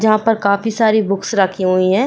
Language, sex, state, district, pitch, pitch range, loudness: Hindi, female, Uttar Pradesh, Jyotiba Phule Nagar, 200 Hz, 195-220 Hz, -15 LUFS